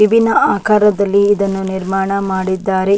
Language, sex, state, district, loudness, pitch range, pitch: Kannada, female, Karnataka, Dakshina Kannada, -14 LUFS, 190-205 Hz, 200 Hz